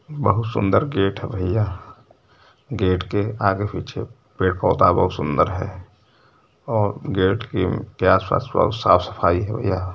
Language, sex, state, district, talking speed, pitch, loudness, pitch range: Hindi, male, Uttar Pradesh, Varanasi, 145 wpm, 100 Hz, -21 LUFS, 95-115 Hz